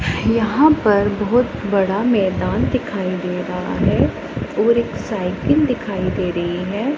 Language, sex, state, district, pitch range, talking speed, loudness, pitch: Hindi, female, Punjab, Pathankot, 190-240 Hz, 140 wpm, -18 LUFS, 205 Hz